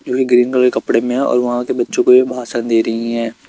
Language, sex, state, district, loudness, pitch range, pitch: Hindi, male, Bihar, Kaimur, -15 LUFS, 115-125 Hz, 125 Hz